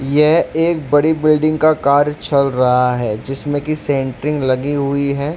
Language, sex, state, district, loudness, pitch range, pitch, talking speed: Hindi, male, Jharkhand, Jamtara, -16 LUFS, 135-155 Hz, 145 Hz, 170 wpm